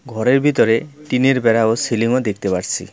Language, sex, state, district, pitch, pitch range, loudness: Bengali, male, West Bengal, Cooch Behar, 120 Hz, 110-135 Hz, -17 LUFS